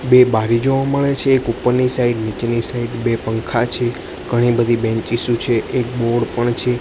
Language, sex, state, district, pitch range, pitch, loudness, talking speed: Gujarati, male, Gujarat, Gandhinagar, 115-125 Hz, 120 Hz, -17 LUFS, 185 wpm